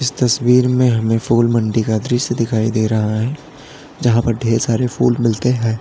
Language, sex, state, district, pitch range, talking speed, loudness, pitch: Hindi, male, Uttar Pradesh, Lalitpur, 115-125 Hz, 185 wpm, -16 LUFS, 120 Hz